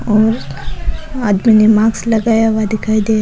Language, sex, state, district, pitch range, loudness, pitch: Rajasthani, female, Rajasthan, Nagaur, 215-225 Hz, -14 LUFS, 220 Hz